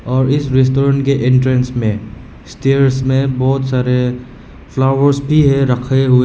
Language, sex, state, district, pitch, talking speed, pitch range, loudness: Hindi, male, Meghalaya, West Garo Hills, 130 Hz, 145 wpm, 125-135 Hz, -14 LUFS